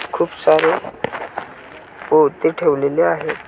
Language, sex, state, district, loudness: Marathi, female, Maharashtra, Washim, -17 LUFS